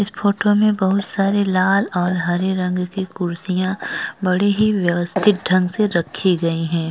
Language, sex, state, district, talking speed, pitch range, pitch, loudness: Hindi, male, Uttar Pradesh, Jyotiba Phule Nagar, 165 wpm, 180-200 Hz, 185 Hz, -19 LUFS